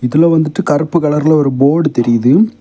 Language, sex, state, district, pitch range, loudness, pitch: Tamil, male, Tamil Nadu, Kanyakumari, 140-165 Hz, -12 LUFS, 150 Hz